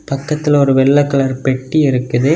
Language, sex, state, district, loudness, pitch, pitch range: Tamil, male, Tamil Nadu, Kanyakumari, -14 LUFS, 135 Hz, 130-150 Hz